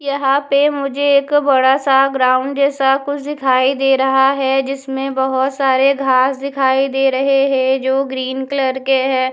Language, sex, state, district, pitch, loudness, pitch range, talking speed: Hindi, female, Punjab, Fazilka, 270 Hz, -15 LUFS, 265-275 Hz, 165 wpm